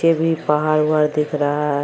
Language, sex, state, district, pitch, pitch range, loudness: Maithili, female, Bihar, Samastipur, 150 Hz, 150-155 Hz, -18 LUFS